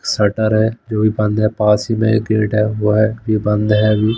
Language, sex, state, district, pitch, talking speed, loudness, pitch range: Hindi, male, Bihar, Katihar, 110 Hz, 230 wpm, -16 LUFS, 105-110 Hz